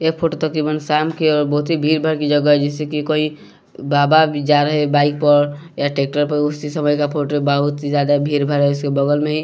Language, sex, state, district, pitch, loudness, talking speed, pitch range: Hindi, male, Bihar, West Champaran, 150 Hz, -17 LUFS, 240 wpm, 145-155 Hz